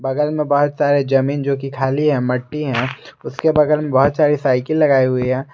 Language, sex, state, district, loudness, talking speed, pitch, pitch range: Hindi, male, Jharkhand, Garhwa, -17 LUFS, 215 wpm, 140 Hz, 135-150 Hz